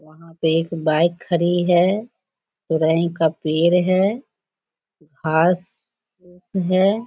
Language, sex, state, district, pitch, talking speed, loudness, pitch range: Hindi, female, Bihar, Jahanabad, 175 Hz, 125 wpm, -19 LUFS, 165-185 Hz